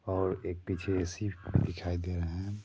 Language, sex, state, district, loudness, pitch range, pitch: Hindi, male, Bihar, Sitamarhi, -34 LUFS, 90-100 Hz, 95 Hz